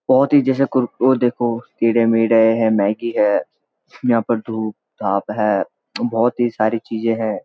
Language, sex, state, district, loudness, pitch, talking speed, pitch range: Hindi, male, Uttarakhand, Uttarkashi, -18 LUFS, 115 Hz, 155 wpm, 110-120 Hz